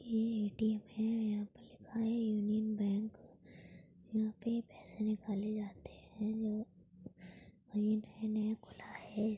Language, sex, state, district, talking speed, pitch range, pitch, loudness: Hindi, female, Uttar Pradesh, Budaun, 145 wpm, 205-220 Hz, 215 Hz, -38 LUFS